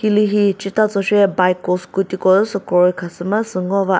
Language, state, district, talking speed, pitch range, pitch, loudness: Chakhesang, Nagaland, Dimapur, 195 wpm, 185-205 Hz, 195 Hz, -17 LUFS